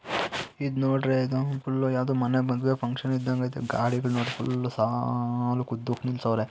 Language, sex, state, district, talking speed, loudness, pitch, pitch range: Kannada, male, Karnataka, Mysore, 140 wpm, -27 LUFS, 125 Hz, 120-130 Hz